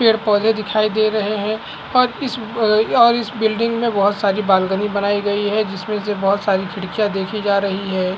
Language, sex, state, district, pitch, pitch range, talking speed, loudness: Hindi, male, Bihar, Lakhisarai, 210 Hz, 200-220 Hz, 200 wpm, -18 LUFS